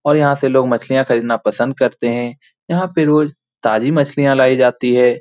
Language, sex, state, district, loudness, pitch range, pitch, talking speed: Hindi, male, Bihar, Saran, -15 LUFS, 120-145 Hz, 135 Hz, 195 wpm